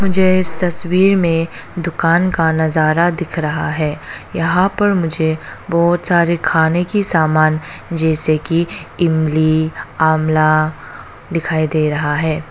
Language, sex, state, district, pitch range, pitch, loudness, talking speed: Hindi, female, Arunachal Pradesh, Papum Pare, 155-175 Hz, 165 Hz, -16 LUFS, 125 wpm